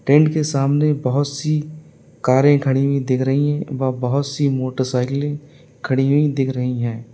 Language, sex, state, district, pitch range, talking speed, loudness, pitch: Hindi, male, Uttar Pradesh, Lalitpur, 130-145 Hz, 170 wpm, -19 LUFS, 140 Hz